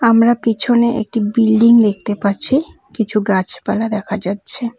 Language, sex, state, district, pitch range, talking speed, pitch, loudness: Bengali, female, West Bengal, Cooch Behar, 210-235 Hz, 125 wpm, 220 Hz, -15 LUFS